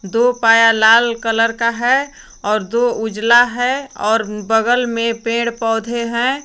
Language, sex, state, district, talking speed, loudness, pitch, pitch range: Hindi, female, Jharkhand, Garhwa, 150 wpm, -15 LUFS, 230 Hz, 225-240 Hz